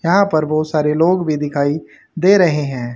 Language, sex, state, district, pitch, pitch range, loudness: Hindi, male, Haryana, Charkhi Dadri, 155 Hz, 150-175 Hz, -16 LUFS